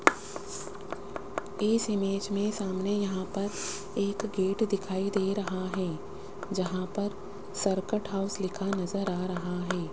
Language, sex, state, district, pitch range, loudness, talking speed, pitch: Hindi, female, Rajasthan, Jaipur, 185-200 Hz, -31 LUFS, 125 wpm, 195 Hz